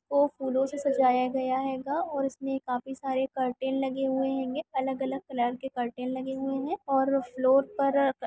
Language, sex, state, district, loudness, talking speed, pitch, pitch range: Hindi, female, Chhattisgarh, Jashpur, -29 LUFS, 175 wpm, 265 Hz, 260-270 Hz